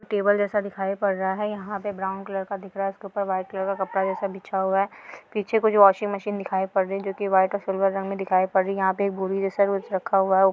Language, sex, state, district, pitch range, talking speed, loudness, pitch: Hindi, female, Bihar, Madhepura, 190-200 Hz, 300 wpm, -24 LUFS, 195 Hz